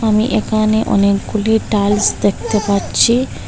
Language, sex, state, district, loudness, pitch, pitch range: Bengali, female, Assam, Hailakandi, -15 LUFS, 215 Hz, 200-220 Hz